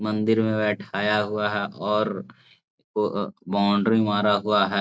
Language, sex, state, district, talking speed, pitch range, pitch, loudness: Hindi, male, Bihar, Jahanabad, 175 wpm, 100-105 Hz, 105 Hz, -23 LUFS